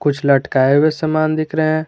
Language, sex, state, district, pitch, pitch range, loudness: Hindi, male, Jharkhand, Garhwa, 155 Hz, 140-155 Hz, -16 LUFS